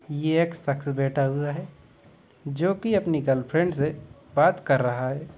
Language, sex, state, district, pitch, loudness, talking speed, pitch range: Hindi, male, Chhattisgarh, Kabirdham, 145 Hz, -25 LUFS, 165 wpm, 135-165 Hz